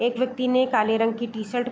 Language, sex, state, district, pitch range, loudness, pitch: Hindi, female, Uttar Pradesh, Gorakhpur, 225-255 Hz, -23 LUFS, 245 Hz